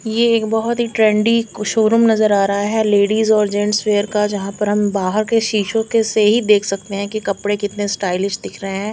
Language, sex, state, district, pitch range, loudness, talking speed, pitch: Hindi, female, Chandigarh, Chandigarh, 205-220 Hz, -16 LUFS, 235 wpm, 210 Hz